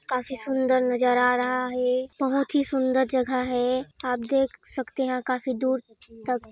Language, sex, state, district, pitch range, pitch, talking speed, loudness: Hindi, female, Chhattisgarh, Sarguja, 250-260 Hz, 255 Hz, 185 wpm, -25 LUFS